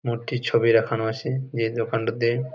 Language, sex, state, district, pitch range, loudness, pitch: Bengali, male, West Bengal, Jalpaiguri, 115-125 Hz, -24 LUFS, 115 Hz